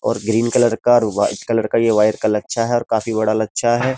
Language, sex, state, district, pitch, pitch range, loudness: Hindi, male, Uttar Pradesh, Jyotiba Phule Nagar, 115 Hz, 110-120 Hz, -17 LUFS